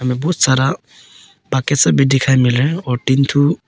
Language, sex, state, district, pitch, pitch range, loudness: Hindi, male, Arunachal Pradesh, Papum Pare, 135 Hz, 130-145 Hz, -15 LUFS